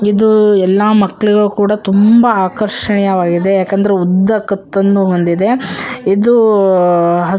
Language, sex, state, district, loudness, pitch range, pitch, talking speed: Kannada, female, Karnataka, Shimoga, -11 LUFS, 190-210 Hz, 200 Hz, 95 wpm